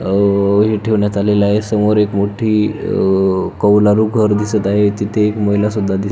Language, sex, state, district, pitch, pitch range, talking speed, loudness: Marathi, male, Maharashtra, Pune, 105 Hz, 100-105 Hz, 185 wpm, -14 LUFS